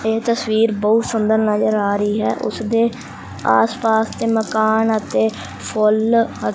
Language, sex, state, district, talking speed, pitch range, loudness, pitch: Punjabi, male, Punjab, Fazilka, 145 wpm, 210-225 Hz, -18 LUFS, 220 Hz